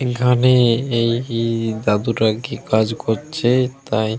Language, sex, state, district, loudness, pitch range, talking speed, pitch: Bengali, male, Jharkhand, Jamtara, -18 LUFS, 110-125 Hz, 100 wpm, 115 Hz